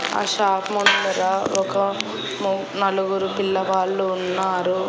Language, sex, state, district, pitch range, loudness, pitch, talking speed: Telugu, female, Andhra Pradesh, Annamaya, 190-195 Hz, -21 LUFS, 195 Hz, 100 wpm